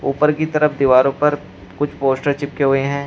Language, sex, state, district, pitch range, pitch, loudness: Hindi, male, Uttar Pradesh, Shamli, 135-150 Hz, 145 Hz, -17 LUFS